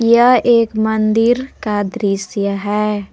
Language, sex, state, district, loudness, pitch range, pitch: Hindi, female, Jharkhand, Palamu, -15 LUFS, 205-235 Hz, 220 Hz